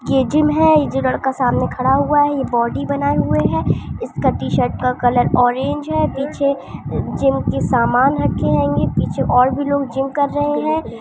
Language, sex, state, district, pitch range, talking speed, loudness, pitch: Hindi, female, Andhra Pradesh, Anantapur, 245-285 Hz, 185 wpm, -17 LUFS, 270 Hz